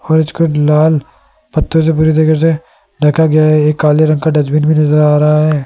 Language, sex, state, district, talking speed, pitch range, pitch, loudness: Hindi, male, Rajasthan, Jaipur, 225 wpm, 150-160 Hz, 155 Hz, -11 LUFS